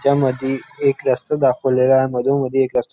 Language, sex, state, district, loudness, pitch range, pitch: Marathi, male, Maharashtra, Nagpur, -18 LUFS, 130-135 Hz, 130 Hz